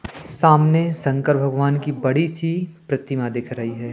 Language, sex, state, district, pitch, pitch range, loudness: Hindi, male, Madhya Pradesh, Katni, 140 Hz, 130-160 Hz, -20 LUFS